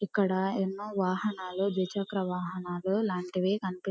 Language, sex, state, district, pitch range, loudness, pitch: Telugu, female, Andhra Pradesh, Guntur, 185-200 Hz, -31 LUFS, 190 Hz